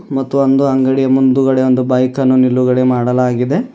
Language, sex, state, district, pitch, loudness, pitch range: Kannada, male, Karnataka, Bidar, 130 Hz, -13 LUFS, 125-135 Hz